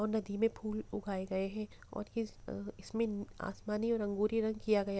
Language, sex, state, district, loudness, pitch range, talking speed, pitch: Hindi, female, Bihar, Gopalganj, -37 LUFS, 200-220 Hz, 190 wpm, 210 Hz